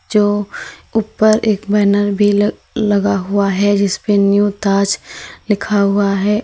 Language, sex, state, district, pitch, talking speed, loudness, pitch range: Hindi, female, Uttar Pradesh, Lalitpur, 205 Hz, 150 wpm, -15 LUFS, 200-210 Hz